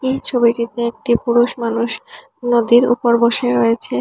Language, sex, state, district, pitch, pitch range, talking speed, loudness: Bengali, female, Assam, Hailakandi, 235 Hz, 235-245 Hz, 135 wpm, -16 LUFS